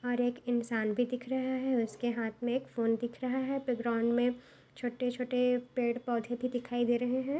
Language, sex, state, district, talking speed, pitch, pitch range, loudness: Hindi, male, Maharashtra, Solapur, 220 wpm, 245 Hz, 240-250 Hz, -33 LUFS